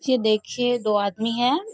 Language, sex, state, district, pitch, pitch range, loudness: Hindi, female, Bihar, Bhagalpur, 240 Hz, 215-250 Hz, -22 LUFS